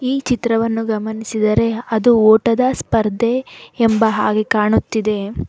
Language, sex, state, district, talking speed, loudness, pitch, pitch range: Kannada, female, Karnataka, Bangalore, 100 wpm, -16 LUFS, 225 Hz, 215-235 Hz